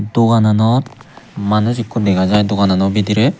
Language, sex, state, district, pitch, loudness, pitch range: Chakma, male, Tripura, Unakoti, 105 Hz, -14 LUFS, 100-115 Hz